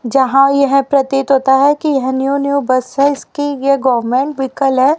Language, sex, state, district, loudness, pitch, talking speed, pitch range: Hindi, male, Haryana, Rohtak, -13 LUFS, 275 Hz, 190 wpm, 265-280 Hz